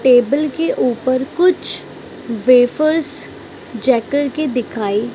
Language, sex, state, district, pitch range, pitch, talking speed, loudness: Hindi, female, Maharashtra, Mumbai Suburban, 240-305 Hz, 255 Hz, 95 wpm, -16 LUFS